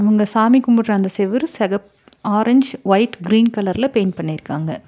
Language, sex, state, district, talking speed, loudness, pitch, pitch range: Tamil, female, Tamil Nadu, Nilgiris, 150 wpm, -17 LUFS, 210 Hz, 195-230 Hz